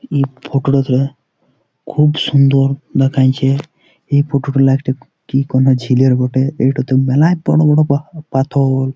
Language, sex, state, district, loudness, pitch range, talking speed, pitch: Bengali, male, West Bengal, Jalpaiguri, -14 LUFS, 130-145 Hz, 140 wpm, 135 Hz